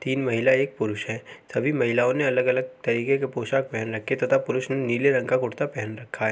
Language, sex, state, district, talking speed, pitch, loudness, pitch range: Hindi, male, Uttar Pradesh, Jalaun, 230 wpm, 125 Hz, -24 LUFS, 110-130 Hz